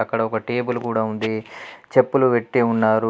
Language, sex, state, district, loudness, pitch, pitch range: Telugu, male, Telangana, Adilabad, -21 LUFS, 115 Hz, 110-125 Hz